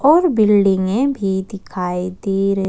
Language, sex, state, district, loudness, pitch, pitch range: Hindi, female, Jharkhand, Ranchi, -17 LUFS, 195 Hz, 190-215 Hz